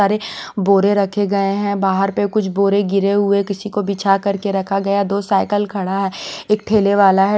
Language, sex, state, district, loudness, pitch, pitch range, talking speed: Hindi, female, Bihar, West Champaran, -17 LUFS, 200 Hz, 195-205 Hz, 210 wpm